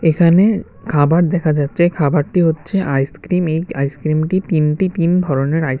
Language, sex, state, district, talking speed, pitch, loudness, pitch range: Bengali, male, Tripura, West Tripura, 135 wpm, 165 Hz, -16 LUFS, 150-175 Hz